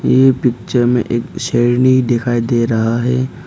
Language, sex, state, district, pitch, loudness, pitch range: Hindi, male, Arunachal Pradesh, Papum Pare, 120 Hz, -14 LUFS, 120-125 Hz